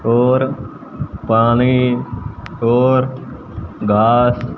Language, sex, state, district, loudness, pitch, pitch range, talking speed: Hindi, male, Haryana, Jhajjar, -15 LUFS, 120 Hz, 115-125 Hz, 50 wpm